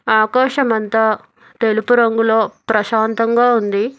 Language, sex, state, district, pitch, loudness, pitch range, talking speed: Telugu, female, Telangana, Hyderabad, 225 Hz, -15 LUFS, 220-240 Hz, 75 wpm